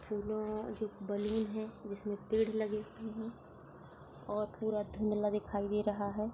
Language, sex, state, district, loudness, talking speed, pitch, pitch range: Hindi, female, Rajasthan, Nagaur, -37 LUFS, 135 wpm, 215 Hz, 210-220 Hz